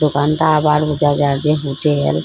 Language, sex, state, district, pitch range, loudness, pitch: Bengali, female, Assam, Hailakandi, 145-150 Hz, -15 LUFS, 150 Hz